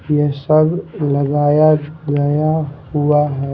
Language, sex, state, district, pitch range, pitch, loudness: Hindi, male, Himachal Pradesh, Shimla, 145-155 Hz, 150 Hz, -16 LUFS